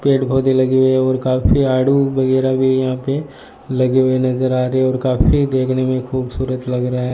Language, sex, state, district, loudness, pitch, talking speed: Hindi, male, Rajasthan, Bikaner, -16 LUFS, 130 Hz, 210 wpm